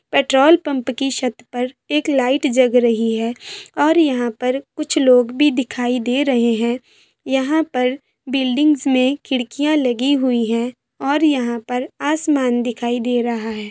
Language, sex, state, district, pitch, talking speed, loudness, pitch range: Hindi, female, Bihar, Sitamarhi, 255 Hz, 160 wpm, -18 LUFS, 245-285 Hz